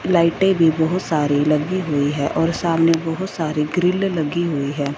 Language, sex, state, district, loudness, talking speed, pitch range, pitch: Hindi, female, Punjab, Fazilka, -19 LUFS, 180 wpm, 150-175 Hz, 165 Hz